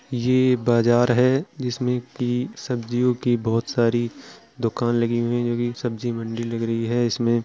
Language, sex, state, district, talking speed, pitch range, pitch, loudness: Hindi, male, Uttar Pradesh, Jalaun, 170 wpm, 115-125 Hz, 120 Hz, -22 LUFS